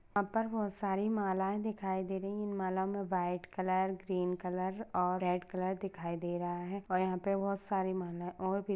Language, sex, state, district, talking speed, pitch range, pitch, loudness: Hindi, female, Maharashtra, Sindhudurg, 200 wpm, 180-200 Hz, 190 Hz, -36 LUFS